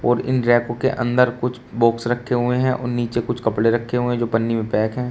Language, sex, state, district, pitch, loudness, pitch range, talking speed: Hindi, male, Uttar Pradesh, Shamli, 120 Hz, -20 LUFS, 115-125 Hz, 245 wpm